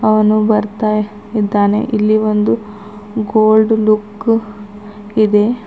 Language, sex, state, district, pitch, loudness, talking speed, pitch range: Kannada, female, Karnataka, Bidar, 215 Hz, -14 LUFS, 75 wpm, 210-215 Hz